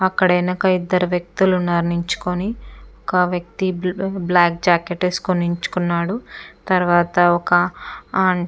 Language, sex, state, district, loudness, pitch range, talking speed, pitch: Telugu, female, Andhra Pradesh, Chittoor, -19 LUFS, 175-185 Hz, 105 wpm, 180 Hz